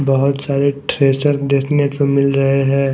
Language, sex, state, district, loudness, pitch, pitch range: Hindi, male, Maharashtra, Gondia, -15 LUFS, 140 Hz, 135-140 Hz